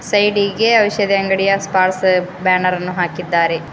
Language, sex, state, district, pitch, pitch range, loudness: Kannada, female, Karnataka, Koppal, 190 Hz, 180-200 Hz, -15 LUFS